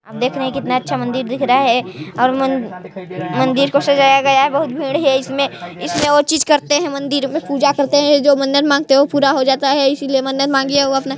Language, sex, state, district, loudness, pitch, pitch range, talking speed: Hindi, female, Chhattisgarh, Sarguja, -15 LUFS, 275 Hz, 260-285 Hz, 240 wpm